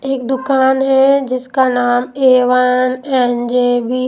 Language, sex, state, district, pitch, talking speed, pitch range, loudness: Hindi, female, Odisha, Malkangiri, 255 Hz, 105 wpm, 250-265 Hz, -13 LUFS